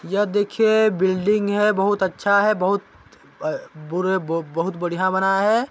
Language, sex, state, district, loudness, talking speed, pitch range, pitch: Chhattisgarhi, male, Chhattisgarh, Balrampur, -20 LUFS, 160 wpm, 185-205 Hz, 195 Hz